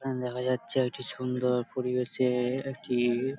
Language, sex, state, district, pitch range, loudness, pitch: Bengali, male, West Bengal, Malda, 125-130 Hz, -30 LUFS, 125 Hz